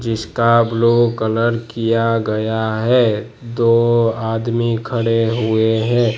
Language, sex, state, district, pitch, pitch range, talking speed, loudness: Hindi, male, Gujarat, Gandhinagar, 115 Hz, 110-115 Hz, 105 wpm, -16 LUFS